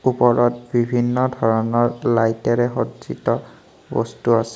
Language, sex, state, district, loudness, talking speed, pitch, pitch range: Assamese, male, Assam, Kamrup Metropolitan, -20 LUFS, 90 wpm, 120 Hz, 115-120 Hz